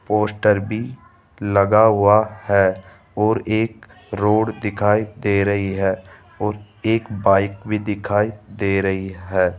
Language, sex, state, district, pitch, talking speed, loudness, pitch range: Hindi, male, Rajasthan, Jaipur, 105 Hz, 125 wpm, -19 LUFS, 100-110 Hz